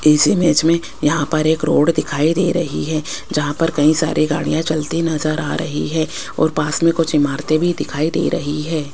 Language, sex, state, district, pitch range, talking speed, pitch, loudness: Hindi, female, Rajasthan, Jaipur, 150-165 Hz, 210 wpm, 155 Hz, -17 LUFS